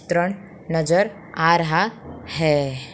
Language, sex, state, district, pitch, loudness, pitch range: Hindi, female, Uttar Pradesh, Muzaffarnagar, 170 Hz, -21 LUFS, 160-185 Hz